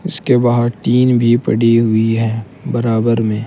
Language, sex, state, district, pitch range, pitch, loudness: Hindi, male, Uttar Pradesh, Saharanpur, 115-120 Hz, 115 Hz, -14 LUFS